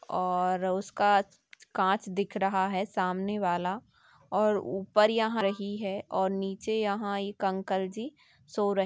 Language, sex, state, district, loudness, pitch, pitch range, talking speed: Hindi, female, Chhattisgarh, Sukma, -29 LUFS, 195 Hz, 190-205 Hz, 140 wpm